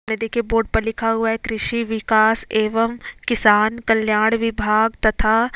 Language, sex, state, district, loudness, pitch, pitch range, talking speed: Hindi, female, Chhattisgarh, Bastar, -19 LUFS, 225 Hz, 220-230 Hz, 150 wpm